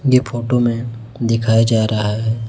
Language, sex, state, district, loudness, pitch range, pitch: Hindi, male, Chhattisgarh, Raipur, -17 LUFS, 110-120 Hz, 115 Hz